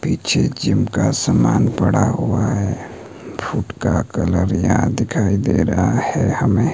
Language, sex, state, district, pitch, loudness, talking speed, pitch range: Hindi, male, Himachal Pradesh, Shimla, 100 Hz, -18 LUFS, 145 wpm, 90-115 Hz